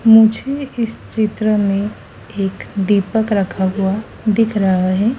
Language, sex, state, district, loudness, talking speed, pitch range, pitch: Hindi, female, Madhya Pradesh, Dhar, -17 LUFS, 125 wpm, 195-225 Hz, 210 Hz